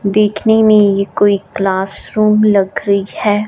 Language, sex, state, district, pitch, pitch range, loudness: Hindi, female, Punjab, Fazilka, 205 Hz, 200-215 Hz, -13 LUFS